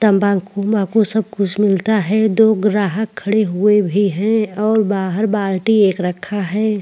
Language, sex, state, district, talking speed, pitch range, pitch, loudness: Hindi, female, Maharashtra, Chandrapur, 160 wpm, 195-215 Hz, 205 Hz, -16 LUFS